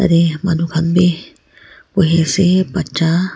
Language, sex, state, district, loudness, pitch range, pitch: Nagamese, female, Nagaland, Kohima, -15 LUFS, 165-180 Hz, 170 Hz